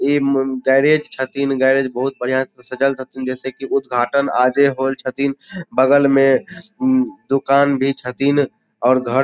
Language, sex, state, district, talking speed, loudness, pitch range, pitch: Maithili, male, Bihar, Supaul, 160 wpm, -17 LUFS, 130-140 Hz, 135 Hz